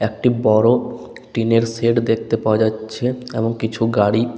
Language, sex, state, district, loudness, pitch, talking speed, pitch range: Bengali, male, West Bengal, Paschim Medinipur, -18 LUFS, 115 Hz, 150 wpm, 110-115 Hz